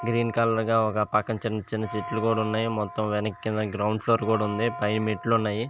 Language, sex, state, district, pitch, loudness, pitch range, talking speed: Telugu, male, Andhra Pradesh, Visakhapatnam, 110 Hz, -26 LUFS, 105-115 Hz, 190 wpm